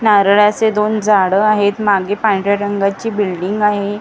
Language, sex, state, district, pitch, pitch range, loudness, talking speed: Marathi, female, Maharashtra, Gondia, 205 Hz, 200-210 Hz, -14 LUFS, 150 wpm